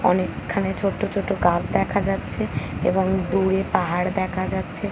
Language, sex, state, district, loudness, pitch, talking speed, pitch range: Bengali, female, West Bengal, Paschim Medinipur, -23 LUFS, 190 Hz, 145 wpm, 180-190 Hz